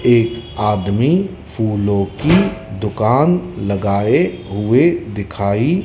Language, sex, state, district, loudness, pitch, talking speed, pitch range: Hindi, male, Madhya Pradesh, Dhar, -17 LUFS, 110 Hz, 80 wpm, 100-140 Hz